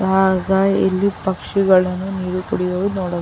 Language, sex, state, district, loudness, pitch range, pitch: Kannada, female, Karnataka, Chamarajanagar, -18 LUFS, 185-195 Hz, 190 Hz